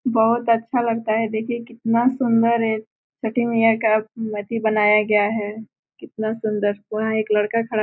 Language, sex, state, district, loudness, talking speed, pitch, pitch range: Hindi, female, Bihar, Gopalganj, -20 LUFS, 175 wpm, 225 Hz, 215-230 Hz